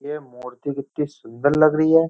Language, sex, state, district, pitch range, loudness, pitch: Hindi, male, Uttar Pradesh, Jyotiba Phule Nagar, 135-155 Hz, -20 LUFS, 145 Hz